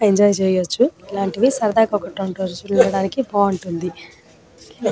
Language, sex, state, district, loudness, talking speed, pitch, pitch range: Telugu, female, Telangana, Nalgonda, -19 LUFS, 110 wpm, 195 Hz, 185-210 Hz